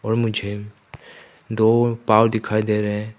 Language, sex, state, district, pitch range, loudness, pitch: Hindi, male, Manipur, Imphal West, 105-115 Hz, -20 LUFS, 110 Hz